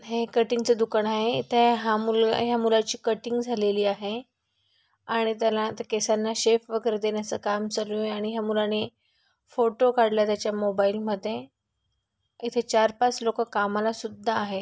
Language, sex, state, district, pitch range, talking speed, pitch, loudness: Marathi, female, Maharashtra, Pune, 210-230 Hz, 155 wpm, 220 Hz, -25 LUFS